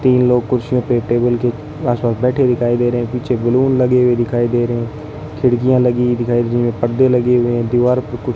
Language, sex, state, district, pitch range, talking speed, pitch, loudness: Hindi, male, Rajasthan, Bikaner, 120-125 Hz, 250 wpm, 120 Hz, -15 LUFS